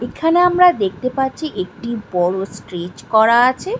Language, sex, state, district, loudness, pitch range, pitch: Bengali, female, West Bengal, Malda, -17 LUFS, 195-325 Hz, 245 Hz